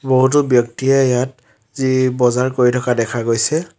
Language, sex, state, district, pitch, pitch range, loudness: Assamese, male, Assam, Sonitpur, 125 Hz, 120-130 Hz, -16 LUFS